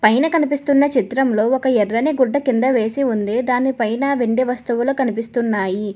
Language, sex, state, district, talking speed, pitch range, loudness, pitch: Telugu, female, Telangana, Hyderabad, 140 wpm, 225-270 Hz, -18 LUFS, 250 Hz